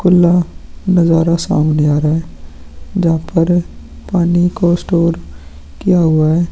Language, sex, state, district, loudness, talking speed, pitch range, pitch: Hindi, male, Chhattisgarh, Korba, -14 LUFS, 130 wpm, 145-175 Hz, 165 Hz